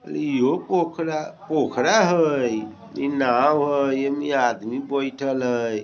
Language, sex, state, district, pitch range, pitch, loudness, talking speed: Bajjika, male, Bihar, Vaishali, 135-160 Hz, 140 Hz, -22 LUFS, 125 wpm